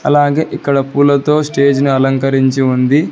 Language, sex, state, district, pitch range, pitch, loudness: Telugu, male, Telangana, Hyderabad, 135-145 Hz, 140 Hz, -12 LUFS